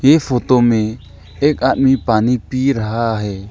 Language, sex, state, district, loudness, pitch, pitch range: Hindi, male, Arunachal Pradesh, Lower Dibang Valley, -15 LUFS, 120 Hz, 110-135 Hz